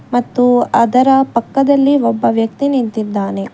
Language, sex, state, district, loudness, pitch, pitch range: Kannada, female, Karnataka, Bangalore, -13 LUFS, 245 Hz, 220-270 Hz